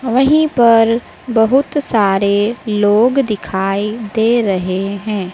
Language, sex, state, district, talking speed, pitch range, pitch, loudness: Hindi, female, Madhya Pradesh, Dhar, 100 wpm, 200-240 Hz, 220 Hz, -14 LUFS